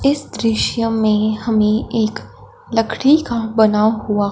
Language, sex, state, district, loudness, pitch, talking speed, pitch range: Hindi, female, Punjab, Fazilka, -17 LUFS, 220 Hz, 125 wpm, 215-230 Hz